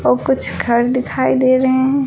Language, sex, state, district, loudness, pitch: Hindi, female, Uttar Pradesh, Lucknow, -15 LUFS, 250 Hz